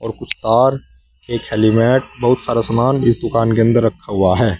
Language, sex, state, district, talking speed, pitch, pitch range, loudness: Hindi, male, Uttar Pradesh, Saharanpur, 195 wpm, 115 Hz, 110-120 Hz, -15 LUFS